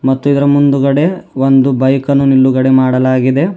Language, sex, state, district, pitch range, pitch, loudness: Kannada, male, Karnataka, Bidar, 130-140 Hz, 135 Hz, -11 LUFS